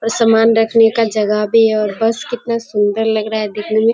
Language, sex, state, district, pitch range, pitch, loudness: Hindi, female, Bihar, Kishanganj, 215-230 Hz, 225 Hz, -14 LUFS